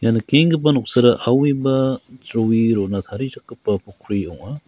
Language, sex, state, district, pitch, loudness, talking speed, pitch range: Garo, male, Meghalaya, West Garo Hills, 120 Hz, -19 LUFS, 130 wpm, 105-135 Hz